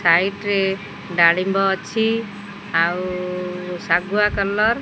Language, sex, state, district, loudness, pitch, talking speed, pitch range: Odia, female, Odisha, Khordha, -20 LUFS, 195 Hz, 100 wpm, 180-205 Hz